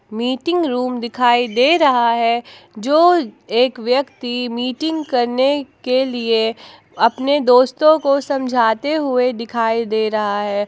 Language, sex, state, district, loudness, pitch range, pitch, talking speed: Hindi, female, Jharkhand, Palamu, -17 LUFS, 230-275 Hz, 250 Hz, 125 wpm